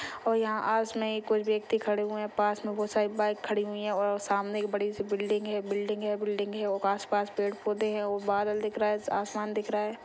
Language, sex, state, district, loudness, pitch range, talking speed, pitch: Hindi, female, Maharashtra, Nagpur, -30 LUFS, 205-215 Hz, 255 wpm, 210 Hz